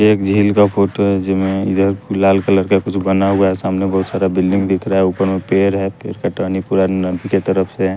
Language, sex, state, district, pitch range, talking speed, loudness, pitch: Hindi, male, Bihar, West Champaran, 95-100 Hz, 255 wpm, -16 LUFS, 95 Hz